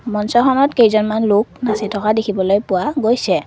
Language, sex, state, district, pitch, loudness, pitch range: Assamese, female, Assam, Kamrup Metropolitan, 215 Hz, -16 LUFS, 210-240 Hz